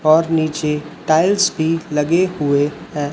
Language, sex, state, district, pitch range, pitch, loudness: Hindi, male, Chhattisgarh, Raipur, 150-165 Hz, 155 Hz, -17 LUFS